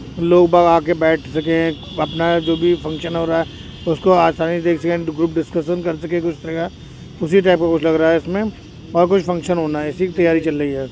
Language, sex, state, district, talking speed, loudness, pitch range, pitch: Hindi, male, Uttar Pradesh, Jyotiba Phule Nagar, 235 wpm, -17 LUFS, 160-175 Hz, 165 Hz